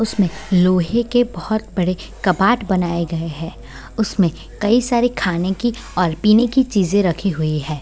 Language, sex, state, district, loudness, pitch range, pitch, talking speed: Hindi, female, Bihar, Sitamarhi, -18 LUFS, 175-220 Hz, 190 Hz, 160 wpm